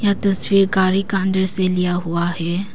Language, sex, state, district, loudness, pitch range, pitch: Hindi, female, Arunachal Pradesh, Papum Pare, -16 LUFS, 180-195 Hz, 190 Hz